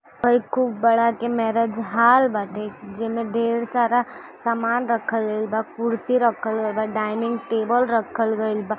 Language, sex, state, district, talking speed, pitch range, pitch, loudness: Hindi, female, Uttar Pradesh, Deoria, 155 wpm, 220-235 Hz, 230 Hz, -22 LUFS